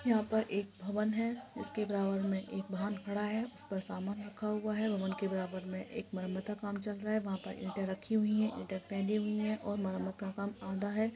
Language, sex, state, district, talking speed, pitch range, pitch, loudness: Hindi, female, Bihar, Supaul, 235 wpm, 195-215 Hz, 205 Hz, -37 LUFS